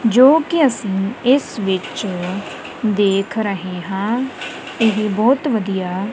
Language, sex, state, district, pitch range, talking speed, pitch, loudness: Punjabi, female, Punjab, Kapurthala, 195-250 Hz, 110 wpm, 210 Hz, -18 LUFS